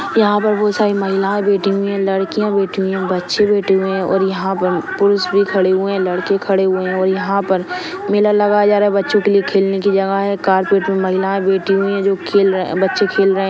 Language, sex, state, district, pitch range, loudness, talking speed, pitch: Hindi, female, Maharashtra, Dhule, 190-200 Hz, -15 LUFS, 240 wpm, 195 Hz